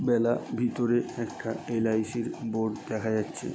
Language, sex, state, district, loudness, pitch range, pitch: Bengali, male, West Bengal, Jalpaiguri, -29 LUFS, 110-120 Hz, 115 Hz